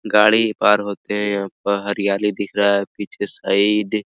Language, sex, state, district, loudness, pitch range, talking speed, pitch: Hindi, male, Bihar, Araria, -19 LUFS, 100-105 Hz, 205 wpm, 100 Hz